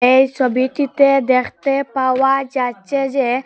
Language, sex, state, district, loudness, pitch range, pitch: Bengali, female, Assam, Hailakandi, -16 LUFS, 255-275 Hz, 265 Hz